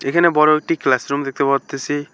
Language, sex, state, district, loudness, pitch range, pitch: Bengali, male, West Bengal, Alipurduar, -17 LUFS, 140-155 Hz, 140 Hz